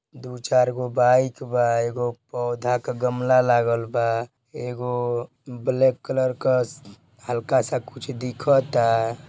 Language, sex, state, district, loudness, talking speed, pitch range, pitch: Bhojpuri, male, Uttar Pradesh, Deoria, -23 LUFS, 125 wpm, 120-130 Hz, 125 Hz